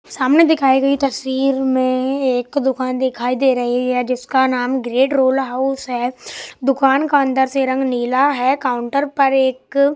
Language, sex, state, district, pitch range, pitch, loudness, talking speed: Hindi, male, Bihar, West Champaran, 255-275 Hz, 265 Hz, -17 LUFS, 170 wpm